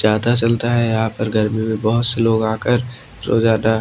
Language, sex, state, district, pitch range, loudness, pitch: Hindi, male, Maharashtra, Washim, 110-120 Hz, -17 LUFS, 110 Hz